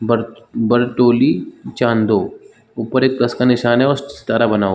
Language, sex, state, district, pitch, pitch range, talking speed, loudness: Hindi, male, Chhattisgarh, Balrampur, 120 Hz, 115-125 Hz, 190 wpm, -16 LUFS